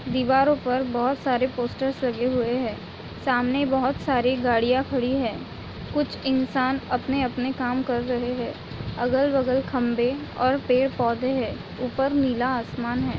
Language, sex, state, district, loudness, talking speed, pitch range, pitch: Hindi, female, Chhattisgarh, Raigarh, -24 LUFS, 145 wpm, 245-265 Hz, 255 Hz